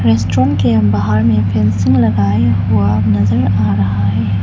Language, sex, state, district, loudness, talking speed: Hindi, female, Arunachal Pradesh, Lower Dibang Valley, -13 LUFS, 150 wpm